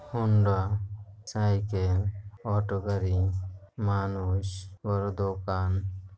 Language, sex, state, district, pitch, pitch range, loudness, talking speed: Bengali, male, West Bengal, Paschim Medinipur, 100 Hz, 95-100 Hz, -29 LUFS, 70 wpm